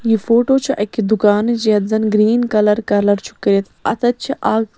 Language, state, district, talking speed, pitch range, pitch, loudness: Kashmiri, Punjab, Kapurthala, 175 wpm, 210-235 Hz, 220 Hz, -16 LUFS